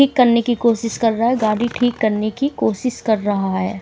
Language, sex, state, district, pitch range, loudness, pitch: Hindi, female, Himachal Pradesh, Shimla, 215-240 Hz, -18 LUFS, 230 Hz